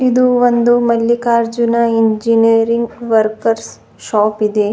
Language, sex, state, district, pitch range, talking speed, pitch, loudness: Kannada, female, Karnataka, Bidar, 220-235 Hz, 90 wpm, 230 Hz, -13 LUFS